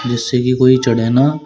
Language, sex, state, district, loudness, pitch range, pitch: Hindi, male, Uttar Pradesh, Shamli, -14 LUFS, 120-130 Hz, 125 Hz